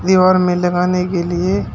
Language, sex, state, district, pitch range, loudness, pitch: Hindi, male, Uttar Pradesh, Shamli, 175-185 Hz, -15 LUFS, 180 Hz